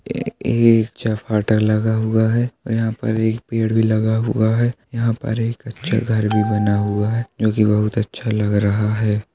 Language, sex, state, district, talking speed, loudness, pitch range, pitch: Hindi, male, Uttar Pradesh, Hamirpur, 195 wpm, -19 LUFS, 110-115 Hz, 110 Hz